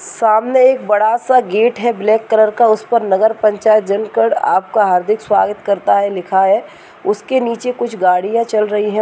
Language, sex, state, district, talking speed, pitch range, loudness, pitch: Hindi, female, Uttar Pradesh, Muzaffarnagar, 180 wpm, 205-235 Hz, -14 LUFS, 215 Hz